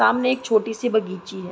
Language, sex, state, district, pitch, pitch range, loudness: Hindi, female, Uttar Pradesh, Varanasi, 220 Hz, 190-245 Hz, -22 LUFS